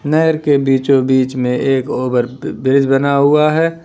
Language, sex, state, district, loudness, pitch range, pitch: Hindi, male, Uttar Pradesh, Lalitpur, -14 LUFS, 130-150 Hz, 135 Hz